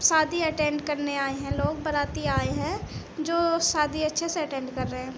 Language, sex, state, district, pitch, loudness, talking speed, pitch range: Hindi, female, Uttar Pradesh, Budaun, 305 Hz, -27 LUFS, 195 wpm, 285-320 Hz